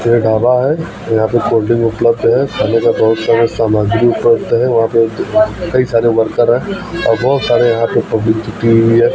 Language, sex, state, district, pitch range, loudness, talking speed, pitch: Hindi, male, Bihar, Kaimur, 115-125 Hz, -12 LUFS, 205 wpm, 115 Hz